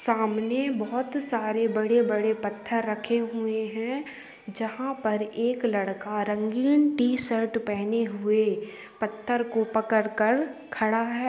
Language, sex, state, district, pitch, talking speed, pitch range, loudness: Hindi, female, Bihar, Gopalganj, 225 Hz, 115 wpm, 215-245 Hz, -27 LUFS